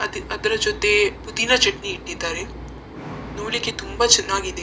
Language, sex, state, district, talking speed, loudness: Kannada, female, Karnataka, Dakshina Kannada, 115 wpm, -20 LUFS